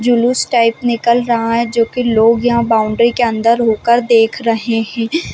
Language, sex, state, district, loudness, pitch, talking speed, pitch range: Hindi, female, Chhattisgarh, Balrampur, -13 LUFS, 235 Hz, 180 wpm, 230-240 Hz